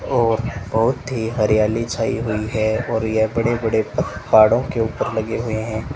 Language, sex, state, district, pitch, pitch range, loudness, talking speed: Hindi, male, Rajasthan, Bikaner, 110 Hz, 110-115 Hz, -19 LUFS, 170 wpm